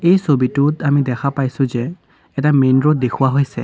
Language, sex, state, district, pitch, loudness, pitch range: Assamese, male, Assam, Sonitpur, 140 Hz, -16 LUFS, 130-145 Hz